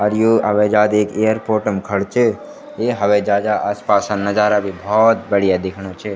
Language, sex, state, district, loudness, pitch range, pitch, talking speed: Garhwali, male, Uttarakhand, Tehri Garhwal, -16 LUFS, 100-110 Hz, 105 Hz, 175 wpm